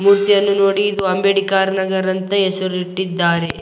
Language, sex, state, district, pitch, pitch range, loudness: Kannada, male, Karnataka, Raichur, 190 Hz, 185-200 Hz, -16 LUFS